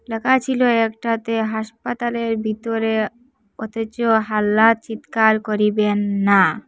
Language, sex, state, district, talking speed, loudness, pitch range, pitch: Bengali, female, Assam, Hailakandi, 90 wpm, -19 LUFS, 215-230 Hz, 225 Hz